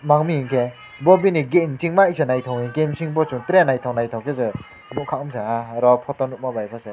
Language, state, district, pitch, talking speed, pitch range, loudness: Kokborok, Tripura, West Tripura, 135 Hz, 190 wpm, 125-160 Hz, -20 LUFS